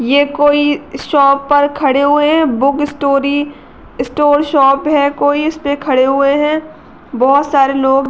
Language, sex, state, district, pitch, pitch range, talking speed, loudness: Hindi, female, Uttar Pradesh, Gorakhpur, 285 Hz, 275-290 Hz, 155 wpm, -12 LUFS